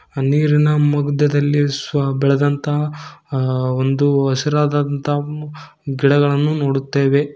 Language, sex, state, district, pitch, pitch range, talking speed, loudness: Kannada, male, Karnataka, Koppal, 145 Hz, 140-150 Hz, 75 wpm, -17 LUFS